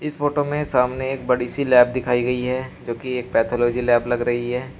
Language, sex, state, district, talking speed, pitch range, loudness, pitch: Hindi, male, Uttar Pradesh, Shamli, 225 wpm, 120-130 Hz, -21 LUFS, 125 Hz